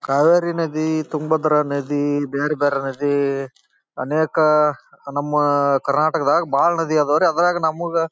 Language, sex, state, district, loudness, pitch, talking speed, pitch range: Kannada, male, Karnataka, Bellary, -19 LUFS, 150 Hz, 140 wpm, 140-160 Hz